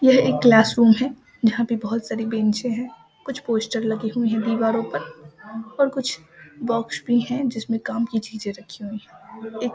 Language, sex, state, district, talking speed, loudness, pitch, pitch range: Maithili, female, Bihar, Samastipur, 195 wpm, -22 LUFS, 230 Hz, 220-240 Hz